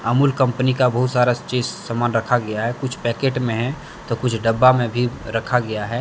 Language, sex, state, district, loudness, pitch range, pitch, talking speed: Hindi, male, Jharkhand, Deoghar, -20 LUFS, 115-125 Hz, 120 Hz, 220 wpm